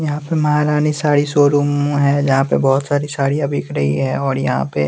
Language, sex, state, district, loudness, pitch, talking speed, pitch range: Hindi, male, Bihar, West Champaran, -16 LUFS, 145 Hz, 210 wpm, 140-150 Hz